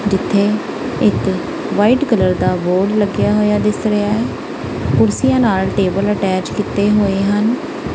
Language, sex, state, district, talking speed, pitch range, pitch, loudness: Punjabi, female, Punjab, Kapurthala, 120 wpm, 195-215 Hz, 205 Hz, -16 LUFS